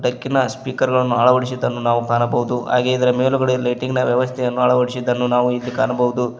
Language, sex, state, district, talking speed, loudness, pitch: Kannada, male, Karnataka, Koppal, 115 wpm, -18 LUFS, 125 Hz